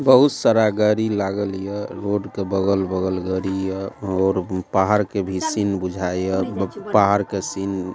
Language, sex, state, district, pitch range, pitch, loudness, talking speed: Maithili, male, Bihar, Supaul, 95-105 Hz, 95 Hz, -21 LUFS, 175 wpm